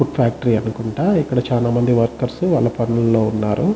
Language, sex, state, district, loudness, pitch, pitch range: Telugu, male, Andhra Pradesh, Chittoor, -18 LUFS, 120 Hz, 115-130 Hz